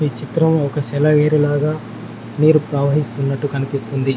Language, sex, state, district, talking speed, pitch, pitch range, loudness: Telugu, male, Telangana, Mahabubabad, 100 wpm, 145 Hz, 135-150 Hz, -17 LUFS